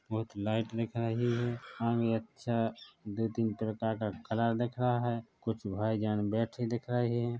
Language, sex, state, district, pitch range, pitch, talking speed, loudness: Hindi, male, Chhattisgarh, Bilaspur, 110-120 Hz, 115 Hz, 185 wpm, -34 LUFS